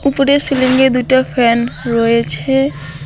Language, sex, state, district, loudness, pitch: Bengali, female, West Bengal, Alipurduar, -13 LUFS, 240 Hz